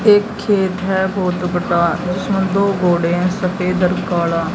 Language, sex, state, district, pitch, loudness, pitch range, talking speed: Hindi, female, Haryana, Jhajjar, 185 Hz, -17 LUFS, 175-195 Hz, 170 wpm